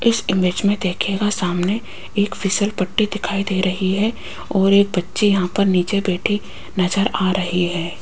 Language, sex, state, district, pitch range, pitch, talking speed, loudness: Hindi, female, Rajasthan, Jaipur, 185-205 Hz, 195 Hz, 170 wpm, -19 LUFS